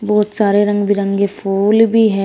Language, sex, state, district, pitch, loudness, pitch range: Hindi, female, Uttar Pradesh, Shamli, 205 Hz, -14 LUFS, 200-210 Hz